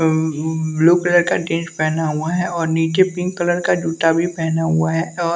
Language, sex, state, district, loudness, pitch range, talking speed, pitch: Hindi, male, Bihar, West Champaran, -18 LUFS, 160-175 Hz, 210 wpm, 165 Hz